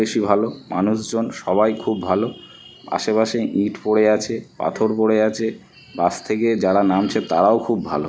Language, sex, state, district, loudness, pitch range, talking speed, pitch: Bengali, male, West Bengal, North 24 Parganas, -20 LUFS, 100-110 Hz, 150 wpm, 110 Hz